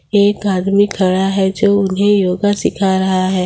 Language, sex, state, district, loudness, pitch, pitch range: Hindi, female, Jharkhand, Ranchi, -14 LUFS, 195 Hz, 190-205 Hz